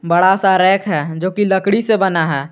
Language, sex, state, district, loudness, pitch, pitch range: Hindi, male, Jharkhand, Garhwa, -15 LUFS, 190 Hz, 170-195 Hz